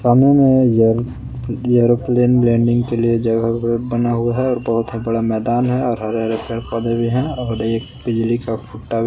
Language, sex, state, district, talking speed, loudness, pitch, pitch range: Hindi, male, Jharkhand, Palamu, 180 wpm, -17 LUFS, 115 Hz, 115-125 Hz